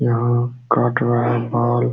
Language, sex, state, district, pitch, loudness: Hindi, male, Uttar Pradesh, Jalaun, 120 Hz, -19 LUFS